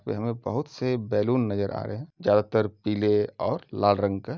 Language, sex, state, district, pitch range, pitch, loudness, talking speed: Hindi, male, Uttar Pradesh, Jalaun, 105-125 Hz, 105 Hz, -26 LUFS, 205 wpm